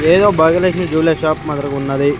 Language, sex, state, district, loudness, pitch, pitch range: Telugu, male, Andhra Pradesh, Sri Satya Sai, -15 LUFS, 160 Hz, 145-170 Hz